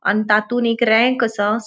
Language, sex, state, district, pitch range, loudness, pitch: Konkani, female, Goa, North and South Goa, 210-235 Hz, -17 LUFS, 225 Hz